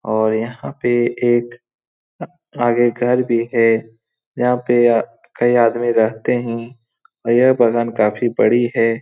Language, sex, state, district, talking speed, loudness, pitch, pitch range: Hindi, male, Bihar, Saran, 140 wpm, -17 LUFS, 120 Hz, 115-120 Hz